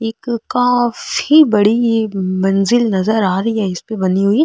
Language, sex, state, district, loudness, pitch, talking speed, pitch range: Marwari, female, Rajasthan, Nagaur, -15 LUFS, 220 Hz, 160 wpm, 195-240 Hz